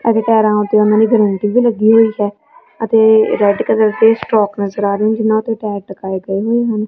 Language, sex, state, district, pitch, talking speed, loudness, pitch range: Punjabi, female, Punjab, Kapurthala, 215 Hz, 220 wpm, -13 LUFS, 205-225 Hz